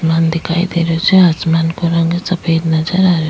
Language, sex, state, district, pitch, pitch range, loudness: Rajasthani, female, Rajasthan, Nagaur, 165 Hz, 165-175 Hz, -14 LUFS